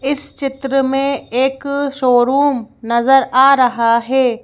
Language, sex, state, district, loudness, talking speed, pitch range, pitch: Hindi, female, Madhya Pradesh, Bhopal, -15 LUFS, 120 wpm, 245-275 Hz, 265 Hz